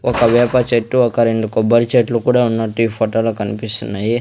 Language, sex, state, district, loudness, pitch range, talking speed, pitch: Telugu, male, Andhra Pradesh, Sri Satya Sai, -15 LUFS, 110-120 Hz, 170 wpm, 115 Hz